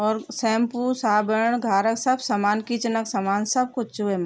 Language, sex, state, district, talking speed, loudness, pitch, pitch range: Garhwali, female, Uttarakhand, Tehri Garhwal, 185 wpm, -23 LUFS, 225 Hz, 210-240 Hz